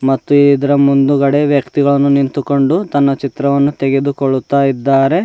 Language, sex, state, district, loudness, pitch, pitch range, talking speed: Kannada, male, Karnataka, Bidar, -13 LUFS, 140 Hz, 135-140 Hz, 115 wpm